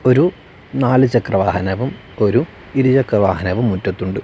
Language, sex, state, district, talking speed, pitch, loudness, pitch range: Malayalam, male, Kerala, Wayanad, 85 wpm, 110 Hz, -17 LUFS, 95-130 Hz